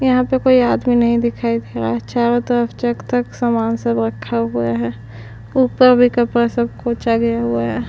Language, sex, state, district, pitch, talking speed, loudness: Hindi, female, Chhattisgarh, Sukma, 235 Hz, 190 wpm, -17 LUFS